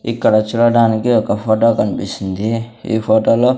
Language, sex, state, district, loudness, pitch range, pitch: Telugu, male, Andhra Pradesh, Sri Satya Sai, -15 LUFS, 110-115 Hz, 115 Hz